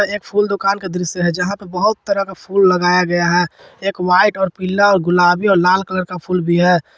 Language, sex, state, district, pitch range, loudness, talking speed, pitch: Hindi, male, Jharkhand, Ranchi, 180-200 Hz, -16 LUFS, 230 wpm, 185 Hz